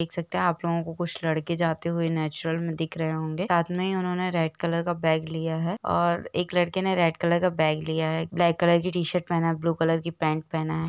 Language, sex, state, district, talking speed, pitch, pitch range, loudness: Hindi, female, Jharkhand, Jamtara, 200 wpm, 165 Hz, 160-175 Hz, -26 LUFS